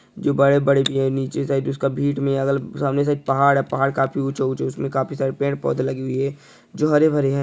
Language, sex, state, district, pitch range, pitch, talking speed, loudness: Hindi, male, Andhra Pradesh, Visakhapatnam, 135-140 Hz, 135 Hz, 260 wpm, -20 LUFS